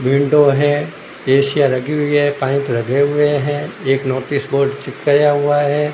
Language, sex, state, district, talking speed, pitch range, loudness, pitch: Hindi, male, Rajasthan, Bikaner, 170 wpm, 140-145 Hz, -16 LUFS, 145 Hz